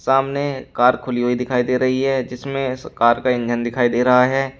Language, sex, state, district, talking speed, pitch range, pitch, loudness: Hindi, male, Uttar Pradesh, Shamli, 220 wpm, 125-135 Hz, 125 Hz, -19 LUFS